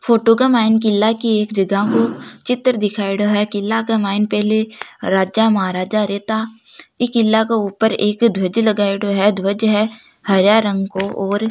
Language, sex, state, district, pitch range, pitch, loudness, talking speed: Marwari, female, Rajasthan, Nagaur, 200-225 Hz, 215 Hz, -16 LUFS, 170 wpm